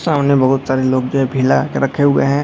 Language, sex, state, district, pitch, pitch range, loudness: Hindi, male, Bihar, Darbhanga, 135 Hz, 130-140 Hz, -15 LUFS